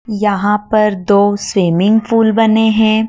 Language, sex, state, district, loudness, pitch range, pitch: Hindi, female, Madhya Pradesh, Dhar, -12 LUFS, 205-220 Hz, 215 Hz